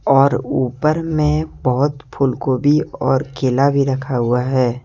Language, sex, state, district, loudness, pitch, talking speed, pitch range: Hindi, male, Jharkhand, Deoghar, -17 LUFS, 135 Hz, 135 wpm, 130-145 Hz